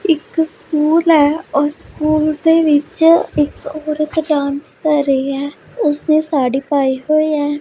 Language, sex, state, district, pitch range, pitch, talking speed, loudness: Punjabi, female, Punjab, Pathankot, 285-315 Hz, 305 Hz, 140 wpm, -15 LUFS